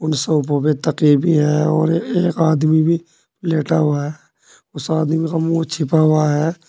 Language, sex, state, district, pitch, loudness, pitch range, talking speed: Hindi, male, Uttar Pradesh, Saharanpur, 155 Hz, -17 LUFS, 150-165 Hz, 170 wpm